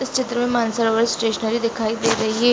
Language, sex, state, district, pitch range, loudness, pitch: Hindi, female, Uttar Pradesh, Jalaun, 225-240 Hz, -20 LUFS, 230 Hz